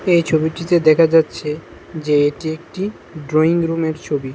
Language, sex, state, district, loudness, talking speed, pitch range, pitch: Bengali, male, Tripura, West Tripura, -17 LUFS, 140 wpm, 155-165 Hz, 160 Hz